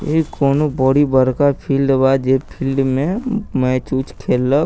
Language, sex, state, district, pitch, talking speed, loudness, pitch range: Maithili, male, Bihar, Sitamarhi, 135 Hz, 155 wpm, -17 LUFS, 130-145 Hz